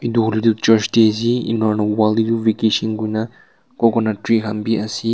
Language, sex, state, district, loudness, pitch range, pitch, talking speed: Nagamese, male, Nagaland, Kohima, -17 LUFS, 110-115 Hz, 110 Hz, 210 wpm